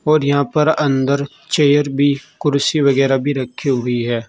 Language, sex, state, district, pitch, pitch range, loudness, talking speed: Hindi, male, Uttar Pradesh, Saharanpur, 140 Hz, 135-145 Hz, -16 LUFS, 170 wpm